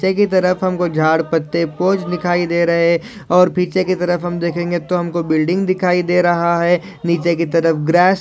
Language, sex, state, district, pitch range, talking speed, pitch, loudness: Hindi, male, Maharashtra, Solapur, 170-180 Hz, 205 wpm, 175 Hz, -16 LUFS